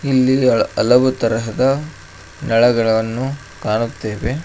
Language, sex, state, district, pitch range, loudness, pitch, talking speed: Kannada, male, Karnataka, Koppal, 110-130 Hz, -17 LUFS, 120 Hz, 80 wpm